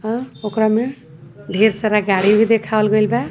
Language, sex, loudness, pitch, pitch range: Sadri, female, -17 LUFS, 215 Hz, 210-225 Hz